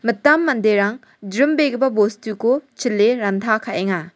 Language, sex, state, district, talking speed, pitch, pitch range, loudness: Garo, female, Meghalaya, West Garo Hills, 100 wpm, 225 Hz, 210-260 Hz, -18 LUFS